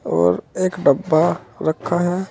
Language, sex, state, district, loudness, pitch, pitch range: Hindi, male, Uttar Pradesh, Saharanpur, -19 LUFS, 160 Hz, 140-185 Hz